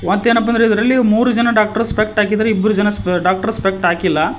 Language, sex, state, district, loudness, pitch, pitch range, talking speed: Kannada, male, Karnataka, Koppal, -15 LUFS, 215 Hz, 195-230 Hz, 180 wpm